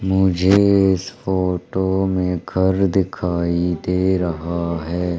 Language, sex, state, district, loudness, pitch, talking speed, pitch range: Hindi, male, Madhya Pradesh, Umaria, -19 LUFS, 95 Hz, 105 wpm, 90-95 Hz